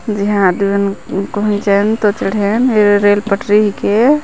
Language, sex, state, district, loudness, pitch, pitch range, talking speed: Hindi, female, Chhattisgarh, Jashpur, -13 LUFS, 205 Hz, 200-210 Hz, 170 wpm